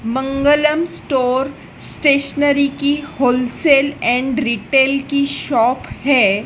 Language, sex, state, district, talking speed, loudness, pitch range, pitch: Hindi, female, Madhya Pradesh, Dhar, 95 wpm, -16 LUFS, 250-285 Hz, 275 Hz